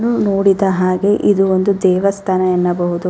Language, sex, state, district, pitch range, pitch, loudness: Kannada, female, Karnataka, Raichur, 185-200 Hz, 190 Hz, -14 LUFS